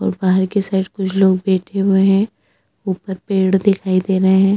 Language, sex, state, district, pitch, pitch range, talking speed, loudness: Hindi, female, Chhattisgarh, Sukma, 190 Hz, 190-195 Hz, 210 wpm, -16 LUFS